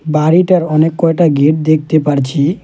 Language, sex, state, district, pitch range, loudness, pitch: Bengali, male, West Bengal, Alipurduar, 150-165 Hz, -12 LUFS, 155 Hz